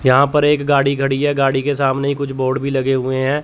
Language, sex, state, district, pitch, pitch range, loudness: Hindi, male, Chandigarh, Chandigarh, 140 Hz, 135-140 Hz, -16 LUFS